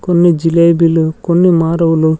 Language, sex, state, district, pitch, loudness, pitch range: Telugu, male, Andhra Pradesh, Sri Satya Sai, 165 Hz, -11 LUFS, 165-170 Hz